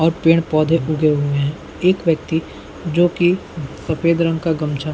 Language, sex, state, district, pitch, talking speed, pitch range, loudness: Hindi, male, Bihar, Saran, 160 Hz, 170 wpm, 155-170 Hz, -18 LUFS